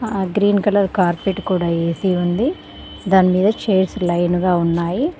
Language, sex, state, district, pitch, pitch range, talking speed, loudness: Telugu, female, Telangana, Mahabubabad, 190 Hz, 175-205 Hz, 150 wpm, -17 LUFS